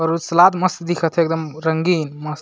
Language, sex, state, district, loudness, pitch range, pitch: Sadri, male, Chhattisgarh, Jashpur, -18 LUFS, 160-175 Hz, 165 Hz